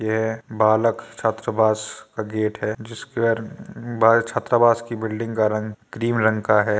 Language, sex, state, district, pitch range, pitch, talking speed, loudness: Hindi, male, Uttar Pradesh, Jyotiba Phule Nagar, 110-115 Hz, 110 Hz, 165 wpm, -21 LUFS